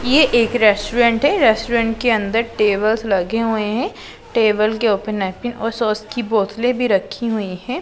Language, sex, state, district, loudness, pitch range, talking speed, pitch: Hindi, female, Punjab, Pathankot, -17 LUFS, 210-235 Hz, 170 wpm, 225 Hz